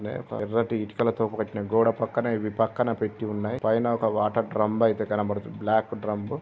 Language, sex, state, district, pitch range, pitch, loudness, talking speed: Telugu, male, Telangana, Karimnagar, 105-115 Hz, 110 Hz, -26 LUFS, 170 wpm